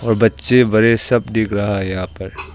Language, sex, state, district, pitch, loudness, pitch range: Hindi, male, Arunachal Pradesh, Longding, 110 Hz, -16 LUFS, 95-115 Hz